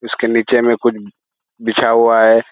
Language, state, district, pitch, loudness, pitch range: Surjapuri, Bihar, Kishanganj, 115 Hz, -14 LUFS, 115-120 Hz